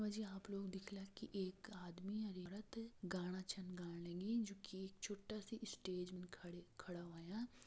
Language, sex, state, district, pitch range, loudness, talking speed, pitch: Hindi, female, Uttarakhand, Tehri Garhwal, 180-210 Hz, -50 LUFS, 150 wpm, 195 Hz